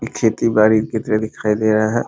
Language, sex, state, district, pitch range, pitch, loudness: Hindi, male, Bihar, Muzaffarpur, 110-115 Hz, 110 Hz, -17 LUFS